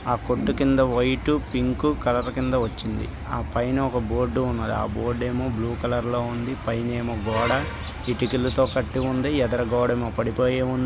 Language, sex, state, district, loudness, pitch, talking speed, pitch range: Telugu, male, Andhra Pradesh, Visakhapatnam, -24 LUFS, 125 Hz, 165 wpm, 115-130 Hz